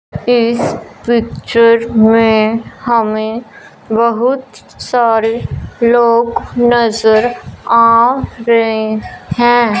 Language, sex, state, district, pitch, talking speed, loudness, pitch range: Hindi, male, Punjab, Fazilka, 230 Hz, 65 wpm, -12 LUFS, 225-240 Hz